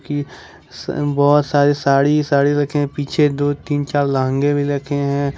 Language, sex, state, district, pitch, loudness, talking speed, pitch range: Hindi, male, Jharkhand, Ranchi, 145 Hz, -17 LUFS, 180 wpm, 140-145 Hz